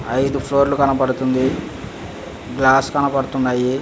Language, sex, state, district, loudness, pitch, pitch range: Telugu, male, Andhra Pradesh, Visakhapatnam, -18 LUFS, 135 Hz, 130-140 Hz